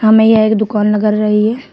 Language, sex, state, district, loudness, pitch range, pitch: Hindi, female, Uttar Pradesh, Shamli, -12 LUFS, 210-220 Hz, 215 Hz